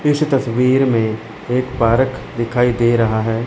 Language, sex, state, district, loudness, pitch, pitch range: Hindi, male, Chandigarh, Chandigarh, -16 LUFS, 120 Hz, 115-130 Hz